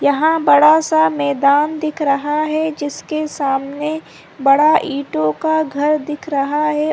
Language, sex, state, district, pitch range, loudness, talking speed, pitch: Hindi, female, Chhattisgarh, Rajnandgaon, 280-310 Hz, -16 LUFS, 145 wpm, 300 Hz